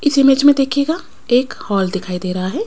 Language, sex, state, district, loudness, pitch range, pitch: Hindi, female, Rajasthan, Jaipur, -16 LUFS, 190-285 Hz, 265 Hz